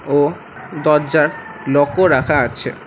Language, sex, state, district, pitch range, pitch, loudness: Bengali, male, West Bengal, Alipurduar, 145-160 Hz, 150 Hz, -16 LUFS